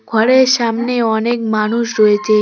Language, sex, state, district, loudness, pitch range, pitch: Bengali, female, West Bengal, Cooch Behar, -14 LUFS, 215-240 Hz, 230 Hz